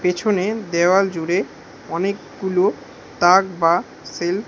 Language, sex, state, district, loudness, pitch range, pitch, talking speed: Bengali, male, West Bengal, Alipurduar, -19 LUFS, 175-195 Hz, 185 Hz, 105 wpm